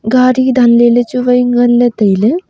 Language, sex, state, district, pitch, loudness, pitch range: Wancho, female, Arunachal Pradesh, Longding, 245 Hz, -10 LUFS, 240-255 Hz